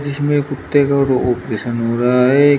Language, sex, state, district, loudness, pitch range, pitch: Hindi, male, Uttar Pradesh, Shamli, -16 LUFS, 120-145 Hz, 135 Hz